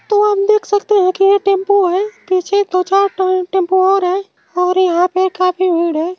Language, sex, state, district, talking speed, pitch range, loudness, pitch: Bhojpuri, female, Uttar Pradesh, Ghazipur, 215 wpm, 365-400 Hz, -14 LUFS, 375 Hz